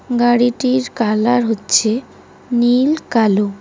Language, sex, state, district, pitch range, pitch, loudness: Bengali, female, West Bengal, Cooch Behar, 220-245 Hz, 240 Hz, -15 LUFS